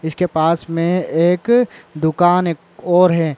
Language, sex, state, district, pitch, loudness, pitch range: Chhattisgarhi, male, Chhattisgarh, Raigarh, 170 Hz, -16 LUFS, 160-180 Hz